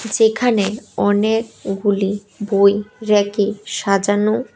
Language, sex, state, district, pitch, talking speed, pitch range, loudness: Bengali, female, Tripura, West Tripura, 205 Hz, 65 wpm, 200-220 Hz, -18 LUFS